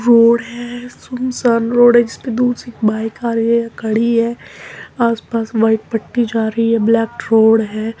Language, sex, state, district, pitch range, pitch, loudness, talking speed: Hindi, male, Uttar Pradesh, Muzaffarnagar, 225-240 Hz, 230 Hz, -15 LUFS, 185 wpm